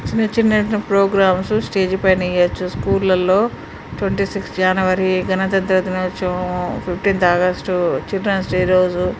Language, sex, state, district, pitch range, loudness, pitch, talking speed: Telugu, female, Telangana, Nalgonda, 180-195 Hz, -17 LUFS, 185 Hz, 110 wpm